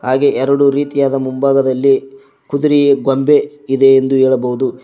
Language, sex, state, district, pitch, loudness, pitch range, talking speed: Kannada, male, Karnataka, Koppal, 135 Hz, -13 LUFS, 130-140 Hz, 110 wpm